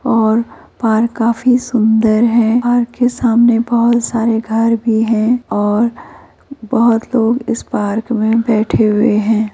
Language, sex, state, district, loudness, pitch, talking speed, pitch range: Hindi, female, Uttar Pradesh, Muzaffarnagar, -14 LUFS, 230 Hz, 150 wpm, 220-235 Hz